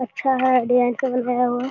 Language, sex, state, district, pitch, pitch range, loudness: Hindi, male, Bihar, Jamui, 250 Hz, 245-260 Hz, -20 LUFS